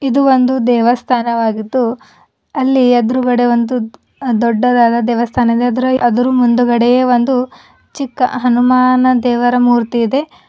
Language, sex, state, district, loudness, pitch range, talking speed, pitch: Kannada, female, Karnataka, Bidar, -13 LUFS, 240-255 Hz, 105 wpm, 245 Hz